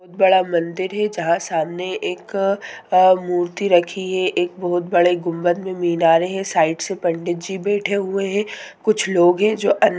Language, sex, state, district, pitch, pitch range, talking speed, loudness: Hindi, female, Bihar, Sitamarhi, 185 Hz, 175-195 Hz, 180 wpm, -19 LUFS